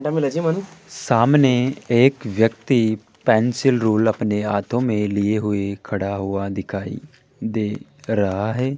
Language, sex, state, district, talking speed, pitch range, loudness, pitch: Hindi, male, Rajasthan, Jaipur, 100 wpm, 105-130 Hz, -20 LUFS, 110 Hz